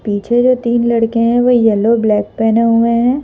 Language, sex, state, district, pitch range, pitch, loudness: Hindi, female, Madhya Pradesh, Bhopal, 225-240 Hz, 230 Hz, -13 LUFS